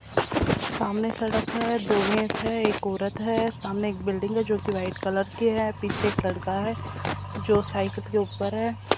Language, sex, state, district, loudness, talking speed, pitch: Hindi, female, Rajasthan, Jaipur, -26 LUFS, 185 wpm, 200 Hz